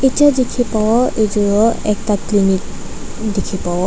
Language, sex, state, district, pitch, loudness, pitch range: Nagamese, female, Nagaland, Dimapur, 215 Hz, -16 LUFS, 200-235 Hz